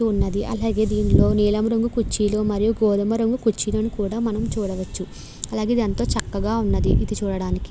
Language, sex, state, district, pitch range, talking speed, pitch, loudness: Telugu, female, Andhra Pradesh, Krishna, 210-225 Hz, 155 wpm, 215 Hz, -22 LUFS